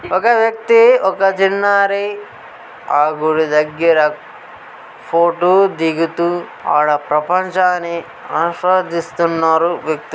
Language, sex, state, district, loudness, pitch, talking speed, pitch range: Telugu, male, Telangana, Karimnagar, -15 LUFS, 170 Hz, 75 wpm, 160-195 Hz